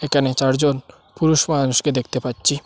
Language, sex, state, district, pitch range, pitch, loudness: Bengali, male, Assam, Hailakandi, 130-145 Hz, 140 Hz, -19 LUFS